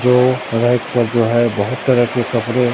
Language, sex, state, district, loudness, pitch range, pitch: Hindi, male, Bihar, Katihar, -16 LUFS, 120-125 Hz, 120 Hz